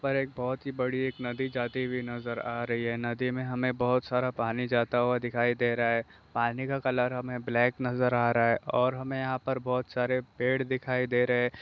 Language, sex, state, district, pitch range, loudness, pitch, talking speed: Hindi, male, Bihar, Bhagalpur, 120-130 Hz, -29 LUFS, 125 Hz, 230 wpm